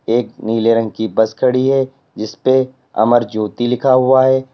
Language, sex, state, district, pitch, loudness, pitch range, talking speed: Hindi, male, Uttar Pradesh, Lalitpur, 125 Hz, -15 LUFS, 115-130 Hz, 170 wpm